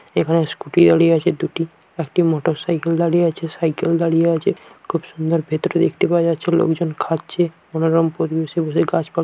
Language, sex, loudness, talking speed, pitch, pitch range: Bengali, male, -18 LUFS, 155 wpm, 165 Hz, 160-170 Hz